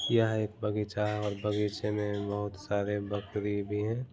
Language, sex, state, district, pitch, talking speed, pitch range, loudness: Hindi, male, Bihar, Muzaffarpur, 105 Hz, 190 wpm, 100-105 Hz, -32 LUFS